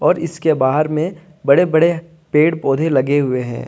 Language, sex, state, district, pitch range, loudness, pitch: Hindi, male, Jharkhand, Deoghar, 140-165 Hz, -16 LUFS, 155 Hz